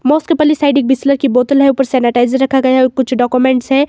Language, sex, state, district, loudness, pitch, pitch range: Hindi, female, Himachal Pradesh, Shimla, -12 LUFS, 265 Hz, 255-280 Hz